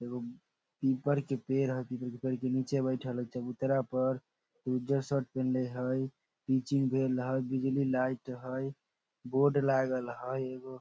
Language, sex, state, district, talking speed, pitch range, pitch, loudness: Maithili, male, Bihar, Samastipur, 155 wpm, 125-135 Hz, 130 Hz, -33 LUFS